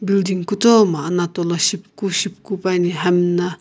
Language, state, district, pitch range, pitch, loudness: Sumi, Nagaland, Kohima, 175-200 Hz, 180 Hz, -18 LUFS